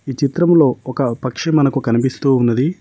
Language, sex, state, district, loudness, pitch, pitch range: Telugu, male, Telangana, Mahabubabad, -16 LUFS, 135 Hz, 130-145 Hz